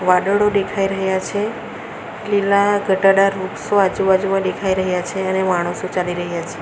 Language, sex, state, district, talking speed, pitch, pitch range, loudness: Gujarati, female, Gujarat, Valsad, 145 wpm, 195 Hz, 185-200 Hz, -18 LUFS